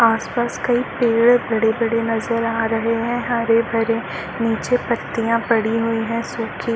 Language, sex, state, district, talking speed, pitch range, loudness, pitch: Hindi, female, Chhattisgarh, Balrampur, 170 wpm, 225-235 Hz, -19 LUFS, 230 Hz